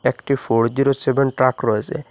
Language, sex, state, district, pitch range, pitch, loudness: Bengali, male, Assam, Hailakandi, 115-140 Hz, 130 Hz, -19 LUFS